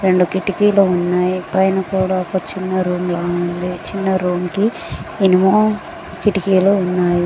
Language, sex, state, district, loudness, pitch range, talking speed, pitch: Telugu, female, Telangana, Mahabubabad, -17 LUFS, 180-195 Hz, 125 wpm, 185 Hz